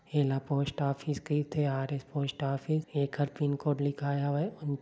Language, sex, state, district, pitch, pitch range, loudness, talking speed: Chhattisgarhi, male, Chhattisgarh, Bilaspur, 145 Hz, 140-150 Hz, -32 LUFS, 150 wpm